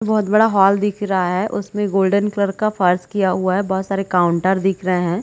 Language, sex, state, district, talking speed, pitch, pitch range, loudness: Hindi, female, Chhattisgarh, Bilaspur, 230 wpm, 195 Hz, 185-205 Hz, -18 LUFS